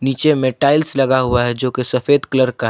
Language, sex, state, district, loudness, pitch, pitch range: Hindi, male, Jharkhand, Palamu, -16 LUFS, 130 Hz, 125-140 Hz